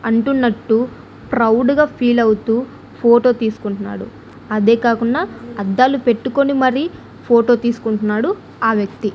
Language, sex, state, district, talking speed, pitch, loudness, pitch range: Telugu, female, Andhra Pradesh, Annamaya, 105 wpm, 235 Hz, -16 LUFS, 225-255 Hz